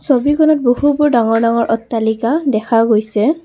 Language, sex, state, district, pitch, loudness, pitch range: Assamese, female, Assam, Kamrup Metropolitan, 235 Hz, -14 LUFS, 225-290 Hz